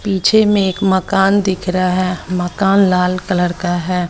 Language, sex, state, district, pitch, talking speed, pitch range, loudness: Hindi, female, Bihar, West Champaran, 185 Hz, 175 wpm, 180-195 Hz, -15 LUFS